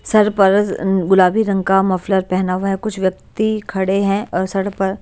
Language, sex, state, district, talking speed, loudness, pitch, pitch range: Hindi, male, Delhi, New Delhi, 190 wpm, -17 LUFS, 195 Hz, 190-205 Hz